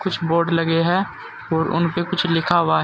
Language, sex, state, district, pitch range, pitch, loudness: Hindi, male, Uttar Pradesh, Saharanpur, 165-175 Hz, 170 Hz, -20 LUFS